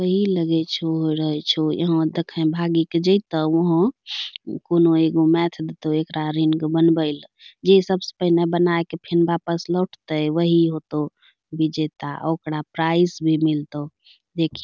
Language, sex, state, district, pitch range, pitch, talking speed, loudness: Angika, female, Bihar, Bhagalpur, 155-170 Hz, 160 Hz, 145 wpm, -21 LUFS